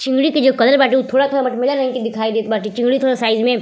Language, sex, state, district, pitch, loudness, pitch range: Bhojpuri, female, Uttar Pradesh, Ghazipur, 255 Hz, -16 LUFS, 230-270 Hz